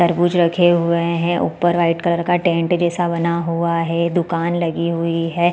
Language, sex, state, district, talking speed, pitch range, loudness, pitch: Hindi, female, Chhattisgarh, Balrampur, 185 wpm, 170-175 Hz, -18 LUFS, 170 Hz